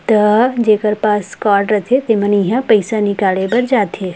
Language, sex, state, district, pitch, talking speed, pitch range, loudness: Chhattisgarhi, female, Chhattisgarh, Rajnandgaon, 210 Hz, 175 wpm, 205-225 Hz, -14 LUFS